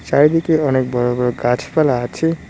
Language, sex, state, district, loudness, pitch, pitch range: Bengali, male, West Bengal, Cooch Behar, -17 LUFS, 140 Hz, 125-155 Hz